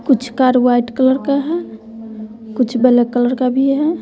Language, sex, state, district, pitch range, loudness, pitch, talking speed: Hindi, female, Bihar, West Champaran, 235-270 Hz, -15 LUFS, 250 Hz, 180 wpm